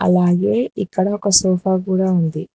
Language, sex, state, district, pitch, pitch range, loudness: Telugu, female, Telangana, Hyderabad, 190 Hz, 180-200 Hz, -17 LUFS